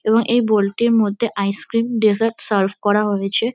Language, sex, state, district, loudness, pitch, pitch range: Bengali, female, West Bengal, North 24 Parganas, -18 LUFS, 215 Hz, 205-230 Hz